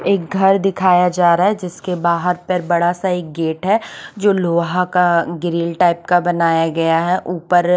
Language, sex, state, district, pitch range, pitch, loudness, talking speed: Hindi, female, Chandigarh, Chandigarh, 170-185 Hz, 175 Hz, -16 LUFS, 170 wpm